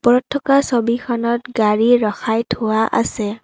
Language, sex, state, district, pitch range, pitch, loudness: Assamese, female, Assam, Kamrup Metropolitan, 220-245 Hz, 235 Hz, -17 LUFS